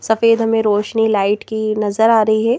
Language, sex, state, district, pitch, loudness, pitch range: Hindi, female, Madhya Pradesh, Bhopal, 220 Hz, -15 LUFS, 210-225 Hz